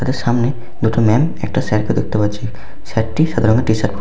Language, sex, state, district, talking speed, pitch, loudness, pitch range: Bengali, male, West Bengal, Paschim Medinipur, 240 wpm, 115 Hz, -17 LUFS, 110-125 Hz